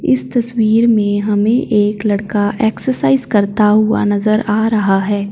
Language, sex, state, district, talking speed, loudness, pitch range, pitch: Hindi, female, Punjab, Fazilka, 145 wpm, -14 LUFS, 205-230 Hz, 215 Hz